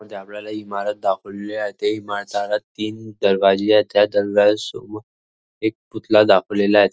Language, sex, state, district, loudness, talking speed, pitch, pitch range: Marathi, male, Maharashtra, Nagpur, -19 LUFS, 145 wpm, 105 Hz, 100-105 Hz